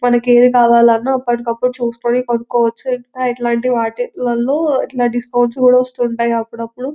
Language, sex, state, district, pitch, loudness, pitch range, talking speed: Telugu, female, Telangana, Nalgonda, 245 Hz, -15 LUFS, 235-250 Hz, 140 wpm